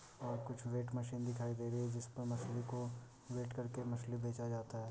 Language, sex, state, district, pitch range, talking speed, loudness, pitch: Hindi, male, Bihar, Muzaffarpur, 120-125 Hz, 230 wpm, -44 LUFS, 120 Hz